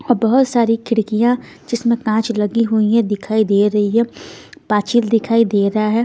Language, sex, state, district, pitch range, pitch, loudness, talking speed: Hindi, female, Bihar, Patna, 215-235 Hz, 225 Hz, -16 LUFS, 180 wpm